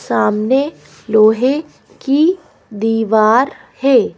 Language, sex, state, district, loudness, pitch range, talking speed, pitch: Hindi, female, Madhya Pradesh, Bhopal, -14 LUFS, 220-280 Hz, 70 wpm, 255 Hz